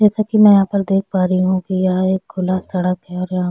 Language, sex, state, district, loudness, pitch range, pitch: Hindi, female, Chhattisgarh, Sukma, -16 LUFS, 185-195 Hz, 185 Hz